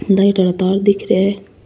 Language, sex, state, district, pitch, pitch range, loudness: Rajasthani, female, Rajasthan, Churu, 195 Hz, 185-200 Hz, -15 LUFS